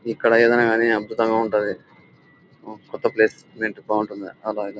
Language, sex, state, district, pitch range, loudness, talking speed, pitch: Telugu, male, Andhra Pradesh, Anantapur, 105-115 Hz, -21 LUFS, 125 wpm, 110 Hz